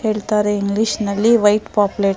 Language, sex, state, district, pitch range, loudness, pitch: Kannada, female, Karnataka, Mysore, 205-215 Hz, -17 LUFS, 210 Hz